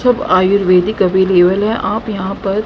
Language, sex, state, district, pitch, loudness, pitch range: Hindi, female, Haryana, Rohtak, 195 Hz, -13 LUFS, 185-215 Hz